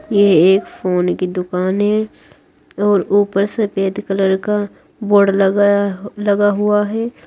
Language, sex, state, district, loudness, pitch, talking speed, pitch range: Hindi, female, Uttar Pradesh, Saharanpur, -15 LUFS, 200 Hz, 130 wpm, 195-205 Hz